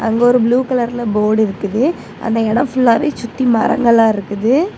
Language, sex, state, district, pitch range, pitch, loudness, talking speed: Tamil, female, Tamil Nadu, Kanyakumari, 220-250 Hz, 235 Hz, -15 LUFS, 150 wpm